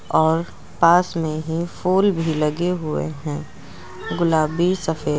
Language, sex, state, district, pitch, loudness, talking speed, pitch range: Hindi, female, Uttar Pradesh, Lucknow, 165 Hz, -21 LUFS, 125 wpm, 155-175 Hz